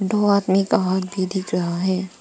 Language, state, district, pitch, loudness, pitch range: Hindi, Arunachal Pradesh, Papum Pare, 190 Hz, -21 LUFS, 185-195 Hz